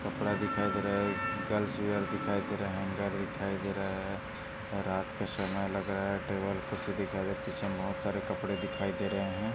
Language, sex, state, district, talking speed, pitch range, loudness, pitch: Hindi, male, Maharashtra, Dhule, 240 wpm, 95-105 Hz, -34 LUFS, 100 Hz